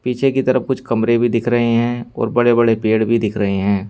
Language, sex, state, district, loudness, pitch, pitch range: Hindi, male, Uttar Pradesh, Saharanpur, -17 LUFS, 115 Hz, 110-120 Hz